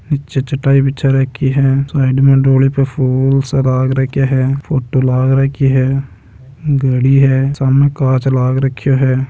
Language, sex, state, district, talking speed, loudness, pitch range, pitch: Hindi, male, Rajasthan, Nagaur, 170 wpm, -13 LUFS, 130-135 Hz, 135 Hz